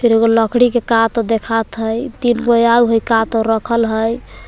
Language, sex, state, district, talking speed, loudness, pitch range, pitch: Magahi, female, Jharkhand, Palamu, 215 wpm, -15 LUFS, 225-235 Hz, 230 Hz